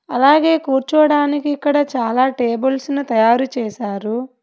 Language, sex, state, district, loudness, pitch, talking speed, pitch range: Telugu, female, Telangana, Hyderabad, -16 LUFS, 265 Hz, 110 wpm, 240-290 Hz